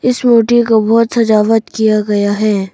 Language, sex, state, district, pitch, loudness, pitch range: Hindi, female, Arunachal Pradesh, Papum Pare, 220 Hz, -12 LUFS, 210-230 Hz